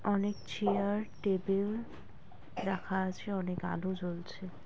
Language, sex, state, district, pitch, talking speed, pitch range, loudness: Bengali, female, West Bengal, Kolkata, 190 Hz, 105 wpm, 185-205 Hz, -35 LUFS